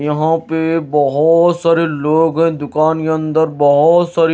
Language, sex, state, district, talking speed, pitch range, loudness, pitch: Hindi, male, Odisha, Nuapada, 150 wpm, 150-165 Hz, -14 LUFS, 160 Hz